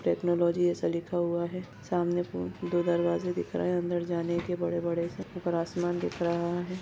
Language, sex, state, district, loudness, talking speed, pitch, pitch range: Hindi, female, Maharashtra, Nagpur, -30 LUFS, 195 wpm, 175 Hz, 170-175 Hz